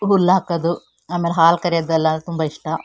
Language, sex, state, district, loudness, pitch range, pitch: Kannada, female, Karnataka, Shimoga, -18 LUFS, 160-175 Hz, 170 Hz